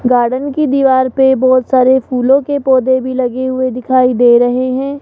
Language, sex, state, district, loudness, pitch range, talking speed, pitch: Hindi, female, Rajasthan, Jaipur, -12 LUFS, 255-265 Hz, 190 wpm, 260 Hz